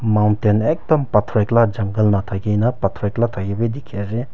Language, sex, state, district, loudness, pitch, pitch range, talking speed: Nagamese, male, Nagaland, Kohima, -19 LUFS, 105 Hz, 105-120 Hz, 180 wpm